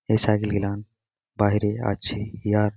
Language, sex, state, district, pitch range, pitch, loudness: Bengali, male, West Bengal, Malda, 105-110 Hz, 105 Hz, -24 LUFS